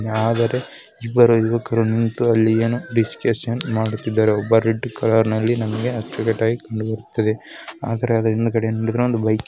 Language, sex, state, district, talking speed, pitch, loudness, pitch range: Kannada, male, Karnataka, Mysore, 95 wpm, 115 Hz, -20 LUFS, 110-115 Hz